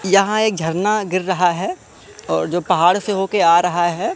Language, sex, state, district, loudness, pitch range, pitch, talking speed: Hindi, male, Madhya Pradesh, Katni, -17 LUFS, 175-200 Hz, 185 Hz, 200 wpm